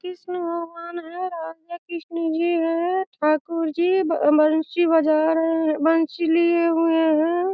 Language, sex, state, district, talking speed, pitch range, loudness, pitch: Hindi, female, Bihar, Sitamarhi, 135 wpm, 325-345 Hz, -21 LUFS, 335 Hz